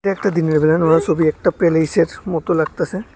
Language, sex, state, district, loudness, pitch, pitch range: Bengali, male, Tripura, West Tripura, -17 LUFS, 165 Hz, 160-190 Hz